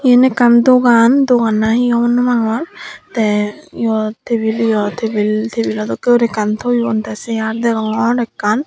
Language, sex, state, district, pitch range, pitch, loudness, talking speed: Chakma, female, Tripura, Dhalai, 215-245 Hz, 230 Hz, -14 LUFS, 160 wpm